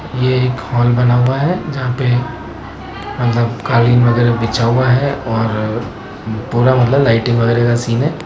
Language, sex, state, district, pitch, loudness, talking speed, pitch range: Hindi, male, Rajasthan, Jaipur, 120 Hz, -14 LUFS, 160 wpm, 120-130 Hz